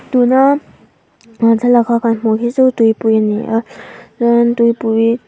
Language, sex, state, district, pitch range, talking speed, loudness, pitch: Mizo, female, Mizoram, Aizawl, 225-240 Hz, 160 wpm, -13 LUFS, 235 Hz